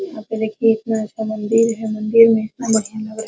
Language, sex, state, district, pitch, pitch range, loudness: Hindi, female, Bihar, Araria, 220 Hz, 215-225 Hz, -18 LUFS